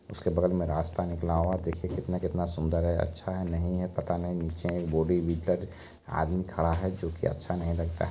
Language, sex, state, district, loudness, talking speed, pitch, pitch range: Maithili, male, Bihar, Supaul, -30 LUFS, 220 wpm, 85 Hz, 85-90 Hz